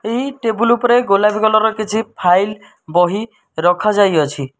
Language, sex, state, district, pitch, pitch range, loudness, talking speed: Odia, male, Odisha, Malkangiri, 210 Hz, 180-225 Hz, -15 LUFS, 145 wpm